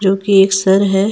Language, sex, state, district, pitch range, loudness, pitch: Hindi, female, Jharkhand, Ranchi, 195-200 Hz, -12 LUFS, 195 Hz